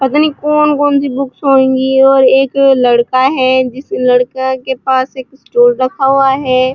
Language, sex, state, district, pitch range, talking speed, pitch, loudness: Hindi, female, Uttar Pradesh, Muzaffarnagar, 260-275 Hz, 170 wpm, 265 Hz, -11 LUFS